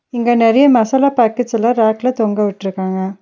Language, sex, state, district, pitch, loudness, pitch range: Tamil, female, Tamil Nadu, Nilgiris, 230 Hz, -14 LUFS, 210-245 Hz